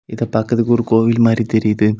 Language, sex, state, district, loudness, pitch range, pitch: Tamil, male, Tamil Nadu, Kanyakumari, -15 LUFS, 110-115 Hz, 115 Hz